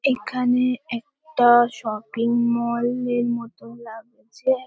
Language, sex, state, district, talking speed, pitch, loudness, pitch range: Bengali, female, West Bengal, Paschim Medinipur, 90 wpm, 240 Hz, -22 LUFS, 235-250 Hz